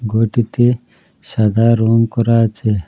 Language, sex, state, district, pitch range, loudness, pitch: Bengali, male, Assam, Hailakandi, 110-115 Hz, -15 LUFS, 115 Hz